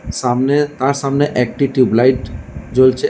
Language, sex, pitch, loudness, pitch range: Bengali, male, 130 Hz, -15 LUFS, 120-140 Hz